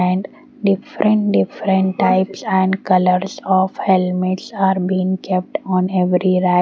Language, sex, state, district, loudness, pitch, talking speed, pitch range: English, female, Haryana, Rohtak, -17 LUFS, 185 Hz, 125 wpm, 185-195 Hz